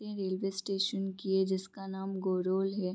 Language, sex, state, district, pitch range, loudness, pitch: Hindi, female, Bihar, Vaishali, 190-195 Hz, -33 LUFS, 195 Hz